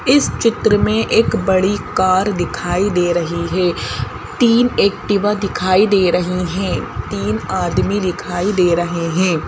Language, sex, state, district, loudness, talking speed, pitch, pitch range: Hindi, female, Madhya Pradesh, Bhopal, -16 LUFS, 140 wpm, 185 Hz, 175-205 Hz